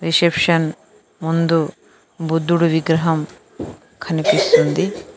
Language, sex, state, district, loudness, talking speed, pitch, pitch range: Telugu, female, Telangana, Mahabubabad, -17 LUFS, 60 wpm, 165 Hz, 160-170 Hz